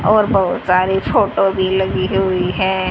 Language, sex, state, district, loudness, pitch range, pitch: Hindi, female, Haryana, Charkhi Dadri, -16 LUFS, 185-195 Hz, 190 Hz